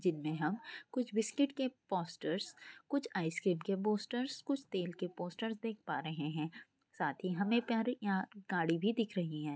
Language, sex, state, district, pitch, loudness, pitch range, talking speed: Hindi, female, Goa, North and South Goa, 200 Hz, -38 LUFS, 175-230 Hz, 170 wpm